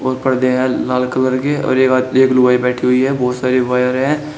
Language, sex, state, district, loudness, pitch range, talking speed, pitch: Hindi, male, Uttar Pradesh, Shamli, -15 LUFS, 125-130 Hz, 245 wpm, 130 Hz